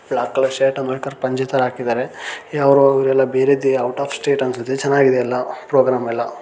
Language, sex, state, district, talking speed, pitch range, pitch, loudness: Kannada, male, Karnataka, Shimoga, 170 wpm, 125-140 Hz, 135 Hz, -18 LUFS